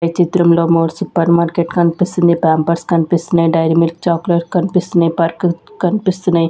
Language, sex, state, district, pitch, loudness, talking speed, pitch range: Telugu, female, Andhra Pradesh, Sri Satya Sai, 170 Hz, -14 LUFS, 130 wpm, 165-175 Hz